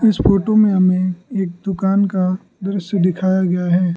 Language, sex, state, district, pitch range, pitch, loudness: Hindi, male, Arunachal Pradesh, Lower Dibang Valley, 185-195 Hz, 185 Hz, -17 LUFS